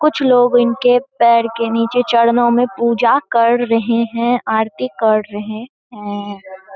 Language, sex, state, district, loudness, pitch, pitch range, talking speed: Hindi, female, Bihar, Saharsa, -15 LUFS, 235 Hz, 220-245 Hz, 140 wpm